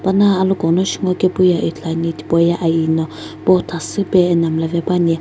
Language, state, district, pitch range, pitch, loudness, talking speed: Sumi, Nagaland, Kohima, 165-185 Hz, 170 Hz, -16 LUFS, 160 wpm